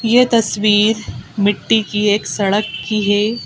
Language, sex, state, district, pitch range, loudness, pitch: Hindi, female, Madhya Pradesh, Bhopal, 205-225 Hz, -16 LUFS, 210 Hz